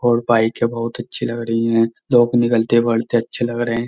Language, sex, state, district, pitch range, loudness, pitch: Hindi, male, Uttar Pradesh, Jyotiba Phule Nagar, 115-120 Hz, -18 LUFS, 115 Hz